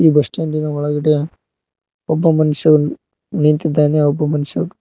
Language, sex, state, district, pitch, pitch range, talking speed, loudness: Kannada, male, Karnataka, Koppal, 150 Hz, 150-155 Hz, 110 wpm, -15 LUFS